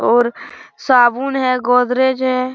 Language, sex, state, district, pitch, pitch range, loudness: Hindi, female, Jharkhand, Sahebganj, 255 Hz, 245-260 Hz, -15 LUFS